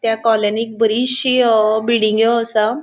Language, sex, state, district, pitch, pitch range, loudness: Konkani, female, Goa, North and South Goa, 225 Hz, 220-235 Hz, -15 LUFS